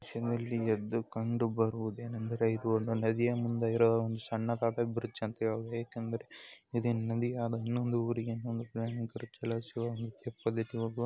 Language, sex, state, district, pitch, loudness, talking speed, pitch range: Kannada, male, Karnataka, Mysore, 115 Hz, -34 LUFS, 80 wpm, 115-120 Hz